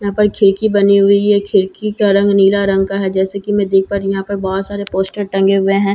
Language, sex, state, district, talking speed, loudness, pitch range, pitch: Hindi, female, Bihar, Katihar, 280 wpm, -14 LUFS, 195-200 Hz, 200 Hz